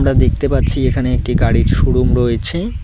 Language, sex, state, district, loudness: Bengali, male, West Bengal, Cooch Behar, -15 LUFS